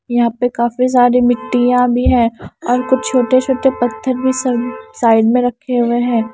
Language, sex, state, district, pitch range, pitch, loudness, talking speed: Hindi, female, Odisha, Nuapada, 240-255 Hz, 245 Hz, -14 LUFS, 170 wpm